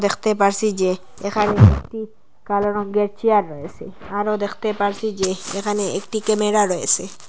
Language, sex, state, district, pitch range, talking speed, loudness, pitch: Bengali, female, Assam, Hailakandi, 200-215 Hz, 140 wpm, -20 LUFS, 205 Hz